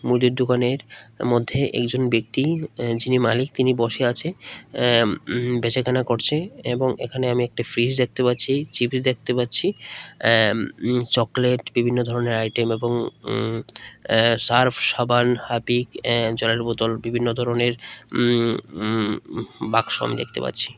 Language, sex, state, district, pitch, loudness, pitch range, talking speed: Bengali, male, Tripura, West Tripura, 120 Hz, -21 LUFS, 115-125 Hz, 140 wpm